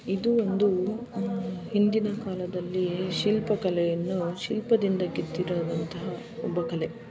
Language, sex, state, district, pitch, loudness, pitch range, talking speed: Kannada, female, Karnataka, Shimoga, 185 Hz, -28 LUFS, 175-210 Hz, 95 wpm